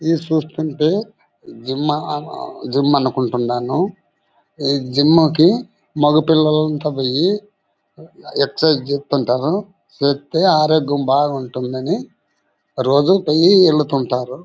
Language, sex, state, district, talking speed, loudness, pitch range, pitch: Telugu, male, Andhra Pradesh, Anantapur, 90 wpm, -17 LUFS, 135-160 Hz, 150 Hz